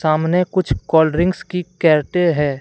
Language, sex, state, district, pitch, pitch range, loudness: Hindi, male, Jharkhand, Deoghar, 165 Hz, 155-180 Hz, -17 LUFS